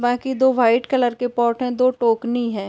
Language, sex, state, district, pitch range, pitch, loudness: Hindi, female, Uttar Pradesh, Deoria, 235-255 Hz, 245 Hz, -19 LUFS